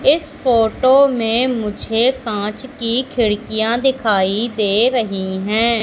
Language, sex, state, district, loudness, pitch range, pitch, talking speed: Hindi, female, Madhya Pradesh, Katni, -16 LUFS, 215-255 Hz, 230 Hz, 115 wpm